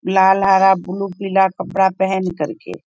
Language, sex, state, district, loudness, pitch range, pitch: Hindi, female, Bihar, Bhagalpur, -16 LUFS, 185-195 Hz, 190 Hz